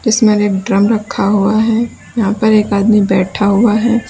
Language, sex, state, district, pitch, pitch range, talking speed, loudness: Hindi, female, Uttar Pradesh, Lalitpur, 215 Hz, 200-225 Hz, 190 wpm, -12 LUFS